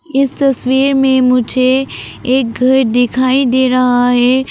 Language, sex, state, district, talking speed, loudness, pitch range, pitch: Hindi, female, Arunachal Pradesh, Papum Pare, 135 wpm, -12 LUFS, 250-265 Hz, 260 Hz